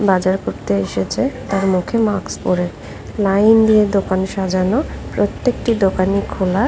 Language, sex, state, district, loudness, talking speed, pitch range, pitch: Bengali, female, West Bengal, Paschim Medinipur, -17 LUFS, 125 wpm, 185-210 Hz, 195 Hz